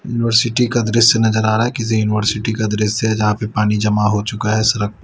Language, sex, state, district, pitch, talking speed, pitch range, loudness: Hindi, male, Delhi, New Delhi, 110 Hz, 240 wpm, 105-115 Hz, -16 LUFS